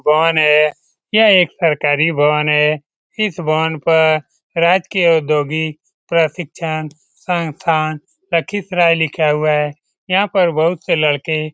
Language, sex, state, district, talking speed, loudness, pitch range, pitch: Hindi, male, Bihar, Lakhisarai, 125 wpm, -15 LUFS, 150-170 Hz, 160 Hz